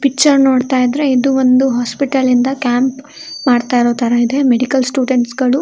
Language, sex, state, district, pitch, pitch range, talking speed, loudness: Kannada, female, Karnataka, Shimoga, 260 Hz, 250-275 Hz, 160 wpm, -13 LUFS